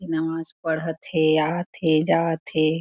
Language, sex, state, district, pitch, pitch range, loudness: Chhattisgarhi, female, Chhattisgarh, Korba, 160 Hz, 155-165 Hz, -23 LUFS